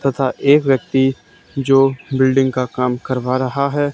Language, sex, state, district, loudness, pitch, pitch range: Hindi, male, Haryana, Charkhi Dadri, -16 LUFS, 135 Hz, 130-140 Hz